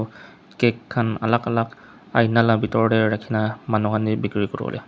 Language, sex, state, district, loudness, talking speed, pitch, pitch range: Nagamese, male, Nagaland, Dimapur, -21 LUFS, 160 wpm, 110 Hz, 110-115 Hz